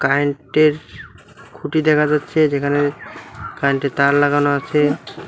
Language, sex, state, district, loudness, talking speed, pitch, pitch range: Bengali, male, West Bengal, Cooch Behar, -17 LUFS, 125 wpm, 145 Hz, 140-150 Hz